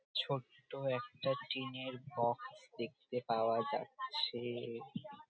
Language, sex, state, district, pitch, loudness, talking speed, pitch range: Bengali, male, West Bengal, Kolkata, 130 Hz, -40 LUFS, 90 wpm, 120-180 Hz